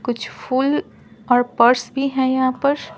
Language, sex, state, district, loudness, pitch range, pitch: Hindi, female, Bihar, Patna, -19 LUFS, 245-275 Hz, 260 Hz